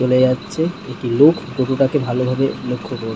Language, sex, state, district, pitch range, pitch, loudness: Bengali, male, West Bengal, North 24 Parganas, 125-140 Hz, 130 Hz, -18 LUFS